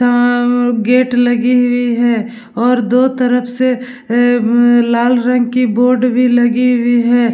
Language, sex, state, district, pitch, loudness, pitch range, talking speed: Hindi, female, Bihar, Vaishali, 245 Hz, -12 LUFS, 240-250 Hz, 165 wpm